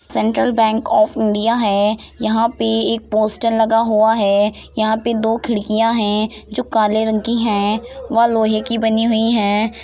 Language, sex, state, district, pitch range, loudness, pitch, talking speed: Hindi, female, Uttar Pradesh, Jalaun, 215-230 Hz, -16 LUFS, 220 Hz, 185 wpm